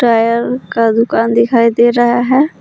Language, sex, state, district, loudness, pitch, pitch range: Hindi, female, Jharkhand, Palamu, -12 LUFS, 235 Hz, 230-240 Hz